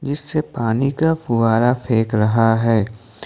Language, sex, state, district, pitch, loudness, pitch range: Hindi, male, Jharkhand, Ranchi, 115 Hz, -18 LUFS, 115-140 Hz